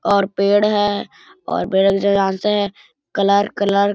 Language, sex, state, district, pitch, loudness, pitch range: Hindi, male, Chhattisgarh, Bilaspur, 200 Hz, -17 LUFS, 195-205 Hz